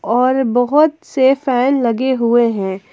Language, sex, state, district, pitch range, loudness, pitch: Hindi, female, Jharkhand, Ranchi, 235-270 Hz, -15 LUFS, 255 Hz